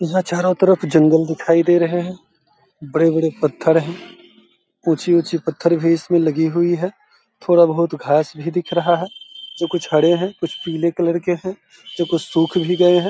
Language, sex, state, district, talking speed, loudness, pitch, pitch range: Hindi, male, Bihar, Begusarai, 185 wpm, -17 LUFS, 170 Hz, 165-175 Hz